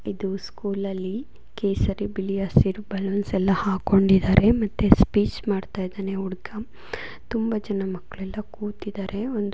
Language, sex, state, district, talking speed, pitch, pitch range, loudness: Kannada, female, Karnataka, Dharwad, 215 wpm, 200 Hz, 195-210 Hz, -24 LUFS